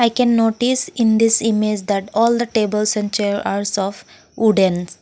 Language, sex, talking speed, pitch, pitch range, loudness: English, female, 180 wpm, 215 Hz, 205-230 Hz, -17 LUFS